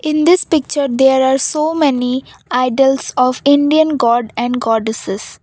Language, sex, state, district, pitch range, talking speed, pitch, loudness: English, female, Assam, Kamrup Metropolitan, 245-300 Hz, 145 wpm, 265 Hz, -14 LUFS